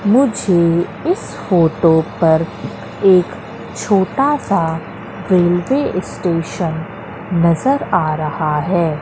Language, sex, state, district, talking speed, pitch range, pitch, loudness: Hindi, female, Madhya Pradesh, Katni, 80 wpm, 165-195 Hz, 175 Hz, -16 LUFS